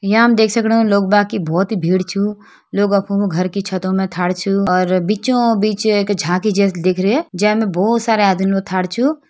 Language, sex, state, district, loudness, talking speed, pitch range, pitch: Hindi, female, Uttarakhand, Uttarkashi, -16 LUFS, 220 wpm, 185-215 Hz, 200 Hz